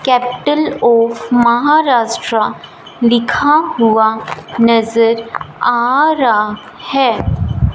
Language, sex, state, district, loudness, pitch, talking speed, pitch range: Hindi, female, Punjab, Fazilka, -13 LUFS, 235 Hz, 70 wpm, 230-260 Hz